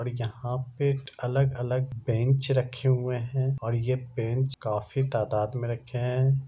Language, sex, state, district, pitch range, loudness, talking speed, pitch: Hindi, male, Bihar, Darbhanga, 120-135 Hz, -28 LUFS, 150 wpm, 125 Hz